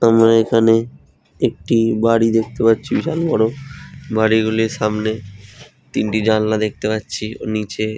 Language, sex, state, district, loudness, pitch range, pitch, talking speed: Bengali, male, West Bengal, Jhargram, -17 LUFS, 110-115 Hz, 110 Hz, 130 wpm